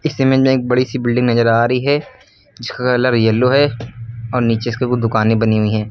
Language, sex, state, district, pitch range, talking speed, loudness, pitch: Hindi, male, Uttar Pradesh, Lucknow, 115-125 Hz, 215 wpm, -15 LUFS, 120 Hz